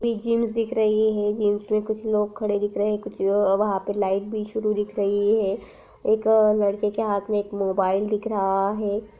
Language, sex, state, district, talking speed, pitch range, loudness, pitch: Hindi, female, Chhattisgarh, Kabirdham, 215 wpm, 200-220 Hz, -23 LUFS, 210 Hz